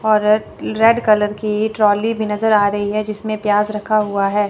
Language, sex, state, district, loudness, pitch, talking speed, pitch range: Hindi, female, Chandigarh, Chandigarh, -17 LUFS, 210 Hz, 215 wpm, 210-215 Hz